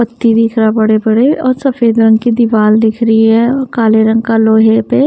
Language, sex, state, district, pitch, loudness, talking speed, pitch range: Hindi, female, Haryana, Charkhi Dadri, 225 Hz, -10 LUFS, 200 wpm, 220-235 Hz